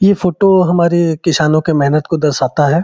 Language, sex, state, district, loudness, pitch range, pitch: Hindi, male, Uttar Pradesh, Gorakhpur, -13 LUFS, 150-175 Hz, 165 Hz